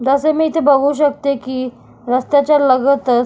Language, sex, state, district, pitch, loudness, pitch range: Marathi, female, Maharashtra, Solapur, 280 Hz, -15 LUFS, 255-290 Hz